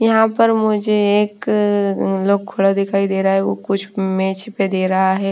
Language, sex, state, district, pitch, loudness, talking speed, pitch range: Hindi, female, Bihar, Patna, 195 Hz, -17 LUFS, 190 wpm, 195-210 Hz